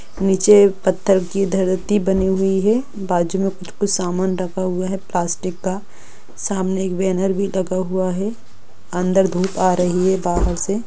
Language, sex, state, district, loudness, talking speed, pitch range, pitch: Hindi, female, Jharkhand, Sahebganj, -19 LUFS, 165 wpm, 185-195 Hz, 190 Hz